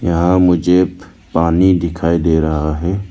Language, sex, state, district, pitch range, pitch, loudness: Hindi, male, Arunachal Pradesh, Lower Dibang Valley, 80-90 Hz, 85 Hz, -14 LUFS